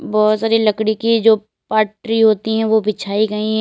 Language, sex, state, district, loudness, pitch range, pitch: Hindi, female, Uttar Pradesh, Lalitpur, -16 LUFS, 215-220 Hz, 215 Hz